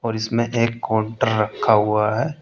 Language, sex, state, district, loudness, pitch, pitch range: Hindi, male, Uttar Pradesh, Saharanpur, -20 LUFS, 110 Hz, 110-115 Hz